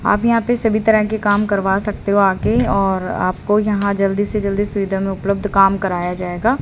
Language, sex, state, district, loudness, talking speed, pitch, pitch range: Hindi, female, Haryana, Charkhi Dadri, -17 LUFS, 210 wpm, 200 Hz, 195-210 Hz